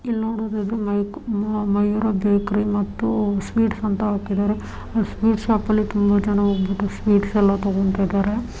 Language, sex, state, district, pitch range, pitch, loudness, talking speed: Kannada, female, Karnataka, Dharwad, 200-215 Hz, 205 Hz, -21 LUFS, 130 wpm